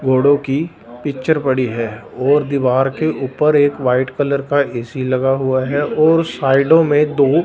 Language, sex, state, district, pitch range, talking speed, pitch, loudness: Hindi, male, Punjab, Fazilka, 130-145 Hz, 170 wpm, 135 Hz, -16 LUFS